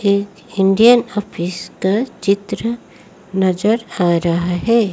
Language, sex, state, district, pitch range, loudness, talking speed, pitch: Hindi, female, Odisha, Malkangiri, 185-230 Hz, -17 LUFS, 110 wpm, 200 Hz